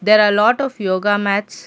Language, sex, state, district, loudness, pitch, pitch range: English, female, Karnataka, Bangalore, -16 LUFS, 205 Hz, 200-215 Hz